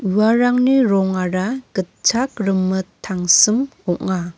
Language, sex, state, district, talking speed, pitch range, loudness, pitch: Garo, female, Meghalaya, North Garo Hills, 80 wpm, 185-245 Hz, -17 LUFS, 195 Hz